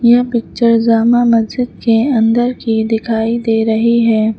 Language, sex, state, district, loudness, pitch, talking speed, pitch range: Hindi, female, Uttar Pradesh, Lucknow, -13 LUFS, 230 Hz, 150 wpm, 225-240 Hz